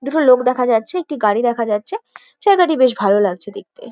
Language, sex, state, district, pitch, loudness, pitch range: Bengali, female, West Bengal, Kolkata, 250 Hz, -16 LUFS, 210-295 Hz